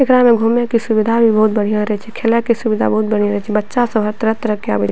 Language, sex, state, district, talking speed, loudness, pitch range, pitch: Maithili, female, Bihar, Purnia, 290 wpm, -15 LUFS, 210-230 Hz, 220 Hz